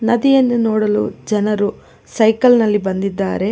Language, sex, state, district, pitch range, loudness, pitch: Kannada, female, Karnataka, Bangalore, 205-235 Hz, -15 LUFS, 215 Hz